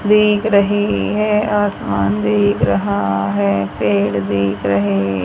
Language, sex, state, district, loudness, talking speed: Hindi, female, Haryana, Charkhi Dadri, -16 LUFS, 115 wpm